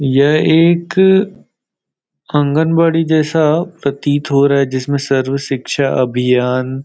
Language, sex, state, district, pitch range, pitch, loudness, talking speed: Hindi, male, Chhattisgarh, Rajnandgaon, 135-165 Hz, 145 Hz, -14 LUFS, 115 wpm